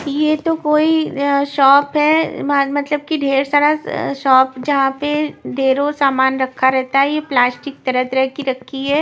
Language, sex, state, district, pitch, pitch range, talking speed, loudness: Hindi, female, Maharashtra, Washim, 280 Hz, 265-295 Hz, 160 wpm, -16 LUFS